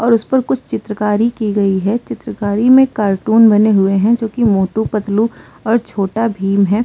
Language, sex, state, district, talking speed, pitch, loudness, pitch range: Hindi, female, Uttar Pradesh, Muzaffarnagar, 175 wpm, 215 Hz, -14 LUFS, 205-230 Hz